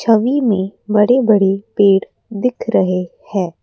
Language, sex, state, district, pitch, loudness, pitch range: Hindi, female, Assam, Kamrup Metropolitan, 205 Hz, -15 LUFS, 195-225 Hz